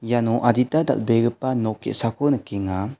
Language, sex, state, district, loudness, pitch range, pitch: Garo, male, Meghalaya, West Garo Hills, -22 LUFS, 110-130 Hz, 115 Hz